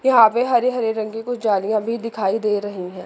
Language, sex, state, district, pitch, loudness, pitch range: Hindi, female, Chandigarh, Chandigarh, 220 Hz, -20 LUFS, 205-235 Hz